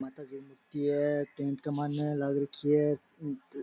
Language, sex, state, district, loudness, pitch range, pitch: Rajasthani, male, Rajasthan, Nagaur, -32 LUFS, 140-145 Hz, 145 Hz